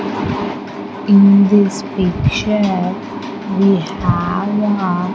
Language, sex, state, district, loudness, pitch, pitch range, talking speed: English, female, Andhra Pradesh, Sri Satya Sai, -15 LUFS, 195 Hz, 185-200 Hz, 80 wpm